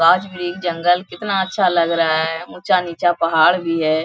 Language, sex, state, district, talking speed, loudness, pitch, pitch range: Hindi, female, Bihar, Bhagalpur, 165 wpm, -18 LUFS, 175 Hz, 165-180 Hz